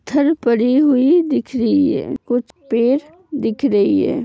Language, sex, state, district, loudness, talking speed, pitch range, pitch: Hindi, female, Uttar Pradesh, Hamirpur, -16 LUFS, 140 wpm, 240-295 Hz, 275 Hz